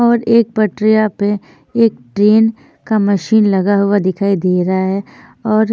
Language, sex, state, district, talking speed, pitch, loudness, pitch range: Hindi, female, Maharashtra, Gondia, 155 wpm, 210 Hz, -14 LUFS, 200-220 Hz